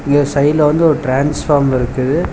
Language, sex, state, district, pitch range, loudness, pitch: Tamil, male, Tamil Nadu, Chennai, 135-150 Hz, -14 LUFS, 145 Hz